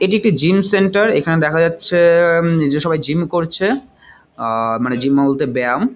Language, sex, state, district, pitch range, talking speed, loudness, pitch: Bengali, male, West Bengal, Jalpaiguri, 145-195 Hz, 200 wpm, -15 LUFS, 165 Hz